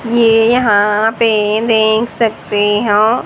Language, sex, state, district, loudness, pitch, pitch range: Hindi, female, Haryana, Jhajjar, -12 LUFS, 220 Hz, 210-230 Hz